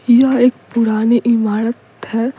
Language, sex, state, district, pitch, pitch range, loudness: Hindi, female, Bihar, Patna, 235 Hz, 225-245 Hz, -15 LUFS